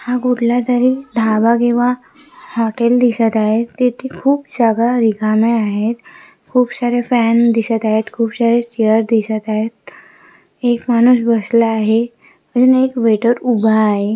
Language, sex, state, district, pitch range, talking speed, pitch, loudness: Marathi, female, Maharashtra, Sindhudurg, 225-245 Hz, 135 wpm, 235 Hz, -15 LUFS